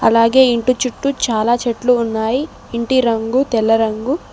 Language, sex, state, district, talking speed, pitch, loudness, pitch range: Telugu, female, Telangana, Mahabubabad, 140 wpm, 240 Hz, -16 LUFS, 225-260 Hz